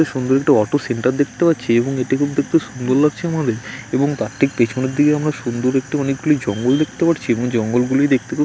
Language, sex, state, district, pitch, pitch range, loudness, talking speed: Bengali, male, West Bengal, Dakshin Dinajpur, 135 Hz, 125-150 Hz, -18 LUFS, 225 wpm